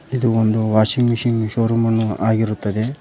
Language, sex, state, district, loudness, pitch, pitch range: Kannada, male, Karnataka, Koppal, -18 LUFS, 110 Hz, 110-120 Hz